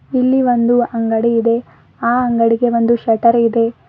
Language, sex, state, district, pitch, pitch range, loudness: Kannada, female, Karnataka, Bidar, 235 Hz, 230-240 Hz, -14 LUFS